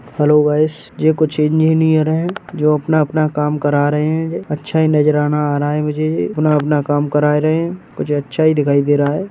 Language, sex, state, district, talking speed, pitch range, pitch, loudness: Hindi, male, Uttar Pradesh, Etah, 210 wpm, 150-155 Hz, 150 Hz, -16 LUFS